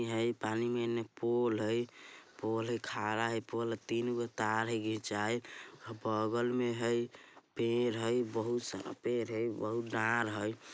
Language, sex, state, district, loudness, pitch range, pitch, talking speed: Bajjika, male, Bihar, Vaishali, -35 LUFS, 110-120 Hz, 115 Hz, 140 wpm